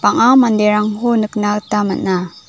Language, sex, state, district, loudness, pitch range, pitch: Garo, female, Meghalaya, South Garo Hills, -14 LUFS, 205-230 Hz, 210 Hz